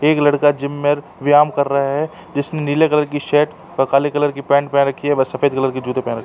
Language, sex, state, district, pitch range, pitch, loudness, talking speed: Hindi, male, Uttar Pradesh, Jalaun, 140-145 Hz, 145 Hz, -17 LUFS, 280 wpm